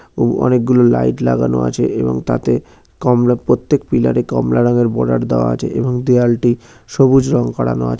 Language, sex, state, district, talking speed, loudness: Bengali, male, West Bengal, North 24 Parganas, 170 wpm, -15 LUFS